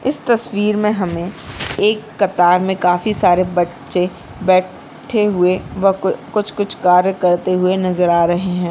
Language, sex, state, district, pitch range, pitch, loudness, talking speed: Hindi, female, Bihar, Bhagalpur, 180-205 Hz, 185 Hz, -16 LUFS, 145 wpm